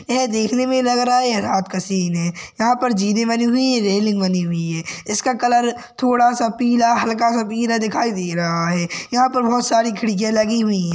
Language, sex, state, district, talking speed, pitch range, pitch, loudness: Hindi, male, Maharashtra, Sindhudurg, 220 wpm, 195-245 Hz, 230 Hz, -18 LUFS